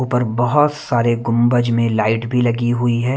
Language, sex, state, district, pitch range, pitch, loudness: Hindi, male, Punjab, Kapurthala, 115-125 Hz, 120 Hz, -17 LUFS